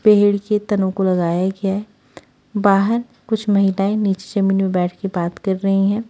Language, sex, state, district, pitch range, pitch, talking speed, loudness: Hindi, female, Haryana, Rohtak, 190-210 Hz, 195 Hz, 185 wpm, -18 LUFS